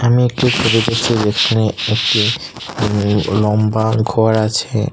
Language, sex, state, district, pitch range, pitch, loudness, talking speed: Bengali, male, Tripura, Unakoti, 105-115 Hz, 110 Hz, -15 LUFS, 120 wpm